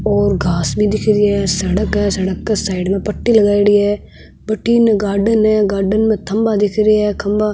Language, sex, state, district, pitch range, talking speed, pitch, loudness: Marwari, female, Rajasthan, Nagaur, 200-215 Hz, 205 wpm, 205 Hz, -15 LUFS